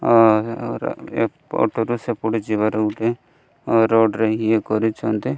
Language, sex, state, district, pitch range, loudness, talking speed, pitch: Odia, male, Odisha, Malkangiri, 110-115 Hz, -20 LUFS, 110 wpm, 110 Hz